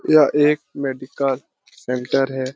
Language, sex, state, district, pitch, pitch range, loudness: Hindi, male, Bihar, Lakhisarai, 135 Hz, 130-145 Hz, -20 LUFS